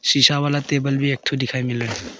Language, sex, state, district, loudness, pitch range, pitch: Hindi, male, Arunachal Pradesh, Papum Pare, -20 LUFS, 130-140 Hz, 140 Hz